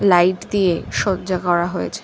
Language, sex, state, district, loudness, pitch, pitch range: Bengali, female, West Bengal, Dakshin Dinajpur, -19 LUFS, 180 Hz, 175-190 Hz